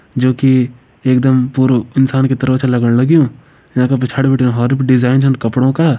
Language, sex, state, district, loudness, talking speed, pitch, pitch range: Garhwali, male, Uttarakhand, Uttarkashi, -13 LUFS, 190 wpm, 130 Hz, 125-135 Hz